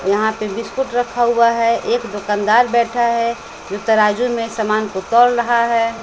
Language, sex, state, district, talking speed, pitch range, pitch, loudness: Hindi, female, Bihar, West Champaran, 180 wpm, 215-235 Hz, 230 Hz, -16 LUFS